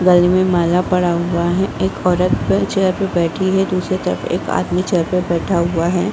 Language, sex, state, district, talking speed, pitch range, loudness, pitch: Hindi, female, Bihar, Saharsa, 245 wpm, 175-185 Hz, -17 LUFS, 180 Hz